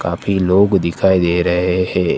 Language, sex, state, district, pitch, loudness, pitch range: Hindi, male, Gujarat, Gandhinagar, 90 Hz, -15 LUFS, 90-95 Hz